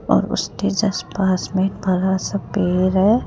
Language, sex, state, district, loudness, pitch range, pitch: Hindi, female, Rajasthan, Jaipur, -20 LUFS, 185-200 Hz, 190 Hz